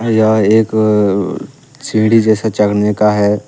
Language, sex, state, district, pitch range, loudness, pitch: Hindi, male, Jharkhand, Deoghar, 105-110 Hz, -12 LUFS, 110 Hz